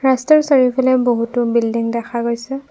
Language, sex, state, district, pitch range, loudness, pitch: Assamese, female, Assam, Kamrup Metropolitan, 235-265 Hz, -16 LUFS, 245 Hz